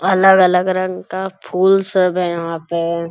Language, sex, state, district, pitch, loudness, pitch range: Hindi, male, Bihar, Bhagalpur, 185 Hz, -16 LUFS, 170-190 Hz